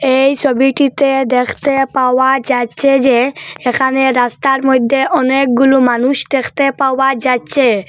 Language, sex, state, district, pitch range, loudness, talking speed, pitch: Bengali, female, Assam, Hailakandi, 255-275 Hz, -12 LUFS, 105 wpm, 265 Hz